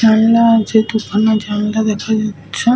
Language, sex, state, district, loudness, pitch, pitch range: Bengali, female, Jharkhand, Sahebganj, -14 LUFS, 220 Hz, 210-225 Hz